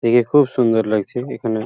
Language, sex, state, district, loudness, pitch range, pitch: Bengali, male, West Bengal, Paschim Medinipur, -17 LUFS, 110-125 Hz, 115 Hz